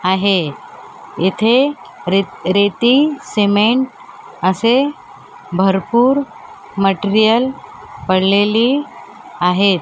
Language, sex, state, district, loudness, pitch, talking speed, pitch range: Marathi, female, Maharashtra, Mumbai Suburban, -15 LUFS, 205 Hz, 60 wpm, 190-260 Hz